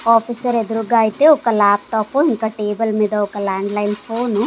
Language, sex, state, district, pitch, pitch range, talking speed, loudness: Telugu, female, Andhra Pradesh, Sri Satya Sai, 220 Hz, 210-235 Hz, 185 wpm, -17 LUFS